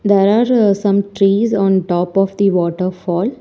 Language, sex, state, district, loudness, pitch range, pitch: English, female, Telangana, Hyderabad, -15 LUFS, 185-205 Hz, 195 Hz